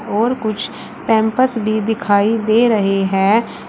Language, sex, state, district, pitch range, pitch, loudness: Hindi, female, Uttar Pradesh, Shamli, 205-225 Hz, 220 Hz, -16 LUFS